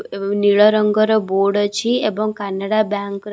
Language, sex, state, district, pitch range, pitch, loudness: Odia, female, Odisha, Khordha, 200-215 Hz, 205 Hz, -17 LUFS